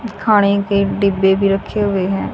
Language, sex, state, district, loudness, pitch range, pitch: Hindi, female, Haryana, Jhajjar, -15 LUFS, 195-205 Hz, 200 Hz